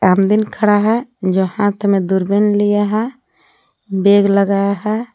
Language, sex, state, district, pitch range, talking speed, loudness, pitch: Hindi, female, Jharkhand, Palamu, 200-220 Hz, 140 wpm, -15 LUFS, 205 Hz